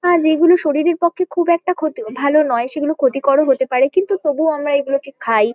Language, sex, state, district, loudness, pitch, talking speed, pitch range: Bengali, female, West Bengal, Kolkata, -16 LUFS, 295 Hz, 195 wpm, 275-340 Hz